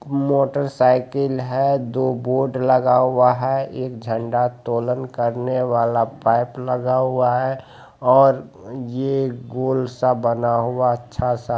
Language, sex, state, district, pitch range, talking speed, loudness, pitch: Hindi, male, Bihar, Saran, 120-130 Hz, 115 wpm, -20 LUFS, 125 Hz